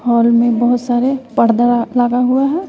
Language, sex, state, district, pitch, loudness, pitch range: Hindi, female, Bihar, West Champaran, 245 Hz, -14 LUFS, 235-255 Hz